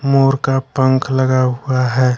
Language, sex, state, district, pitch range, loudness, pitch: Hindi, male, Bihar, West Champaran, 130-135 Hz, -15 LUFS, 130 Hz